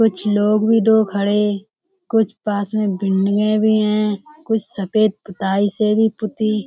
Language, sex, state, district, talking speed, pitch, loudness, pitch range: Hindi, female, Uttar Pradesh, Budaun, 160 wpm, 215 Hz, -18 LUFS, 205-220 Hz